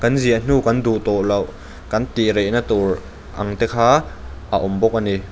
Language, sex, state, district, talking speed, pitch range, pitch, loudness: Mizo, male, Mizoram, Aizawl, 205 wpm, 100-115 Hz, 110 Hz, -19 LUFS